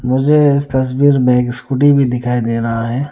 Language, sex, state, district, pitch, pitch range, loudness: Hindi, male, Arunachal Pradesh, Lower Dibang Valley, 130 Hz, 125-140 Hz, -14 LUFS